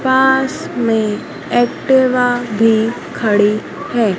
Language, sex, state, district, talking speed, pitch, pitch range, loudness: Hindi, female, Madhya Pradesh, Dhar, 85 wpm, 240 Hz, 220-260 Hz, -15 LUFS